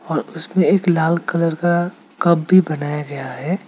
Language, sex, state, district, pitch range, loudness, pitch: Hindi, male, Meghalaya, West Garo Hills, 155-180 Hz, -18 LUFS, 170 Hz